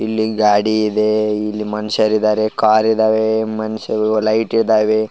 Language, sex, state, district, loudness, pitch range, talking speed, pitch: Kannada, male, Karnataka, Raichur, -16 LUFS, 105-110 Hz, 130 wpm, 110 Hz